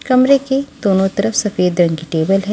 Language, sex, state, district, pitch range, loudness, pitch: Hindi, female, Maharashtra, Washim, 180-255 Hz, -15 LUFS, 200 Hz